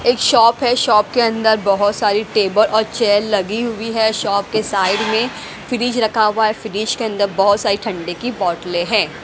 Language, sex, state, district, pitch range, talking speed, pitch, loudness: Hindi, female, Haryana, Rohtak, 205-230 Hz, 200 wpm, 220 Hz, -16 LUFS